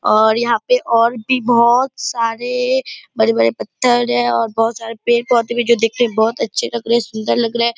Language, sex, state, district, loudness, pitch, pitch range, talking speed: Hindi, female, Bihar, Purnia, -16 LUFS, 235 Hz, 225-240 Hz, 215 wpm